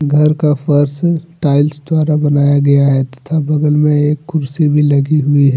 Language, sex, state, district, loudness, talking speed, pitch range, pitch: Hindi, male, Jharkhand, Deoghar, -13 LUFS, 185 wpm, 145-155 Hz, 150 Hz